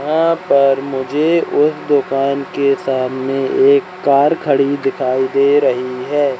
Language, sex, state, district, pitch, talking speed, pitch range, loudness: Hindi, male, Madhya Pradesh, Katni, 140 Hz, 130 wpm, 135-145 Hz, -15 LUFS